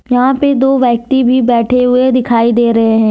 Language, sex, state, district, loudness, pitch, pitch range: Hindi, female, Jharkhand, Deoghar, -11 LUFS, 250 Hz, 235-260 Hz